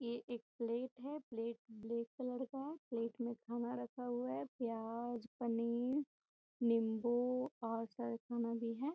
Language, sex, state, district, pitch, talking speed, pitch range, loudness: Hindi, female, Bihar, Gopalganj, 235 Hz, 155 wpm, 230-250 Hz, -42 LUFS